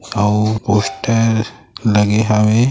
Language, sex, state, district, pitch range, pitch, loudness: Chhattisgarhi, male, Chhattisgarh, Raigarh, 105-115 Hz, 110 Hz, -15 LUFS